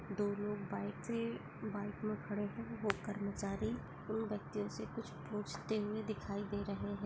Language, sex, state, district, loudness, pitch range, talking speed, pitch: Hindi, female, Jharkhand, Jamtara, -42 LUFS, 200-215 Hz, 170 wpm, 205 Hz